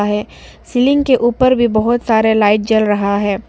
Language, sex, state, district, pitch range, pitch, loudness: Hindi, female, Arunachal Pradesh, Papum Pare, 210-240 Hz, 220 Hz, -14 LUFS